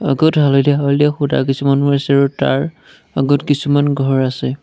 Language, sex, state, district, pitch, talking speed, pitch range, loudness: Assamese, male, Assam, Sonitpur, 140 Hz, 155 wpm, 135-145 Hz, -15 LUFS